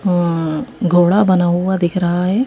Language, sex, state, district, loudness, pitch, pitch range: Hindi, female, Madhya Pradesh, Bhopal, -15 LUFS, 180 Hz, 175-190 Hz